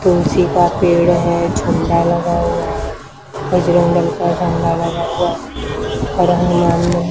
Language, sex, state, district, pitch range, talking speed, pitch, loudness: Hindi, female, Maharashtra, Mumbai Suburban, 170-175 Hz, 120 wpm, 170 Hz, -15 LUFS